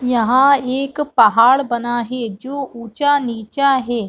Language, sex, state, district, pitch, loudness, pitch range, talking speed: Hindi, female, Chhattisgarh, Bastar, 250 Hz, -16 LUFS, 235-275 Hz, 130 wpm